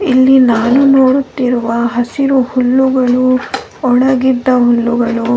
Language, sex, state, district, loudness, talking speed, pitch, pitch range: Kannada, female, Karnataka, Bellary, -11 LUFS, 90 wpm, 255 Hz, 240-260 Hz